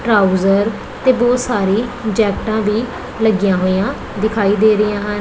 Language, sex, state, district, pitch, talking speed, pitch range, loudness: Punjabi, female, Punjab, Pathankot, 215 Hz, 140 wpm, 200-225 Hz, -16 LUFS